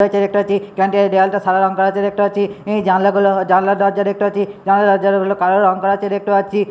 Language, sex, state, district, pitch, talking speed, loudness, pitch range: Bengali, male, West Bengal, Purulia, 200 Hz, 270 wpm, -15 LUFS, 195-200 Hz